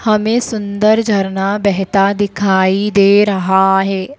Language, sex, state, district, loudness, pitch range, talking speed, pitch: Hindi, female, Madhya Pradesh, Dhar, -13 LUFS, 195-210 Hz, 115 wpm, 200 Hz